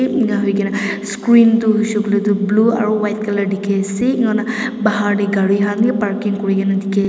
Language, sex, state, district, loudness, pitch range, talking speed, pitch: Nagamese, female, Nagaland, Dimapur, -16 LUFS, 200-220 Hz, 170 wpm, 210 Hz